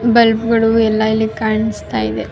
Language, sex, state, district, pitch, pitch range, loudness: Kannada, female, Karnataka, Raichur, 220 Hz, 215-225 Hz, -15 LUFS